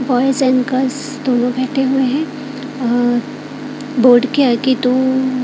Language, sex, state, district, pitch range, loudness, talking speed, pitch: Hindi, female, Bihar, Katihar, 255-275 Hz, -15 LUFS, 100 wpm, 260 Hz